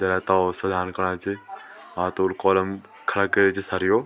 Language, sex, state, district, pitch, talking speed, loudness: Garhwali, male, Uttarakhand, Tehri Garhwal, 95 Hz, 180 wpm, -23 LUFS